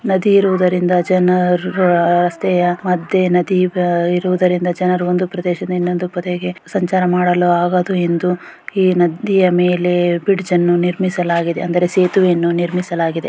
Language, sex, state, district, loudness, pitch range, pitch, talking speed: Kannada, female, Karnataka, Gulbarga, -15 LUFS, 175-185 Hz, 180 Hz, 110 wpm